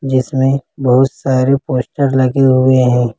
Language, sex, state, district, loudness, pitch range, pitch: Hindi, male, Jharkhand, Ranchi, -13 LUFS, 130-135 Hz, 130 Hz